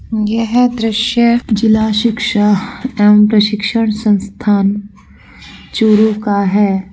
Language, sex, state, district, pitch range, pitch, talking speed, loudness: Hindi, female, Rajasthan, Churu, 205-225 Hz, 215 Hz, 85 wpm, -13 LUFS